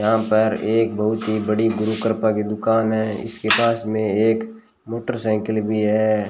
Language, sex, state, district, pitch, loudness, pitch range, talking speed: Hindi, male, Rajasthan, Bikaner, 110 Hz, -20 LUFS, 110-115 Hz, 170 wpm